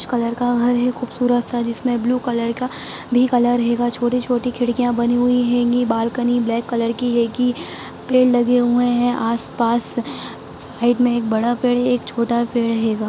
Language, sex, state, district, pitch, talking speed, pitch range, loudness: Hindi, female, Bihar, Saran, 240 Hz, 175 wpm, 235-245 Hz, -19 LUFS